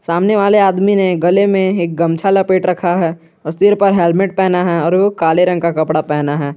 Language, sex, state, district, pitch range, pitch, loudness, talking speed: Hindi, male, Jharkhand, Garhwa, 165-195 Hz, 180 Hz, -13 LUFS, 230 wpm